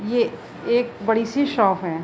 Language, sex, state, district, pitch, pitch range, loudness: Hindi, female, Uttar Pradesh, Budaun, 225 Hz, 195-240 Hz, -21 LUFS